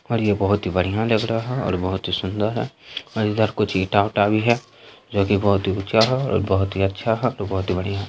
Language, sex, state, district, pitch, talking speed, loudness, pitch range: Hindi, male, Bihar, Saharsa, 100 Hz, 250 wpm, -21 LUFS, 95-110 Hz